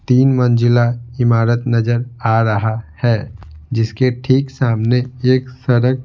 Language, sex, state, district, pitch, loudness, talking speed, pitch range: Hindi, male, Bihar, Patna, 120 Hz, -16 LUFS, 130 wpm, 115-125 Hz